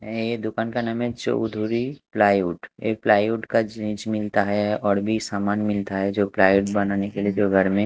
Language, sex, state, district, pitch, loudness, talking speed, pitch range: Hindi, male, Haryana, Charkhi Dadri, 105 Hz, -23 LUFS, 200 wpm, 100-110 Hz